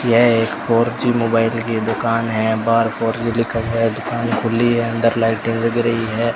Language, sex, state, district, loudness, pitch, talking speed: Hindi, male, Rajasthan, Bikaner, -18 LUFS, 115 Hz, 210 wpm